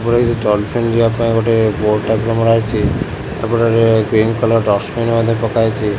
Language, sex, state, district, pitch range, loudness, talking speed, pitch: Odia, male, Odisha, Khordha, 110-115 Hz, -15 LUFS, 170 wpm, 115 Hz